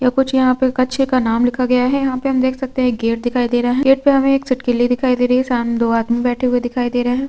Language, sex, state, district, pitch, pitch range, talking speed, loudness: Hindi, female, Chhattisgarh, Korba, 250 Hz, 245-260 Hz, 320 wpm, -16 LUFS